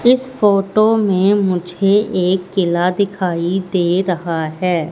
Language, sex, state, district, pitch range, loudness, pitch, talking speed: Hindi, female, Madhya Pradesh, Katni, 180-200 Hz, -16 LUFS, 185 Hz, 120 wpm